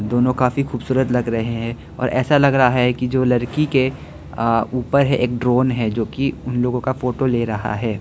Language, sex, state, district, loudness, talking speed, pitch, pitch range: Hindi, male, Arunachal Pradesh, Lower Dibang Valley, -19 LUFS, 215 wpm, 125 Hz, 115-130 Hz